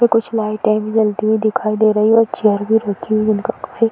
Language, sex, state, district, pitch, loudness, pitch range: Hindi, female, Uttar Pradesh, Varanasi, 215 Hz, -16 LUFS, 215-225 Hz